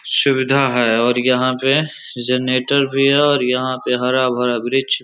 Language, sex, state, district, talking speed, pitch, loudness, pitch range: Hindi, male, Bihar, Samastipur, 180 wpm, 130 Hz, -16 LUFS, 125-135 Hz